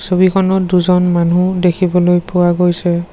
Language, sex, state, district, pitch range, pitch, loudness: Assamese, male, Assam, Sonitpur, 175-185 Hz, 180 Hz, -13 LUFS